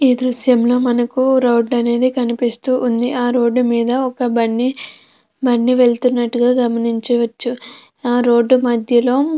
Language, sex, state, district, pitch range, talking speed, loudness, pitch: Telugu, female, Andhra Pradesh, Krishna, 235-255 Hz, 115 wpm, -16 LUFS, 245 Hz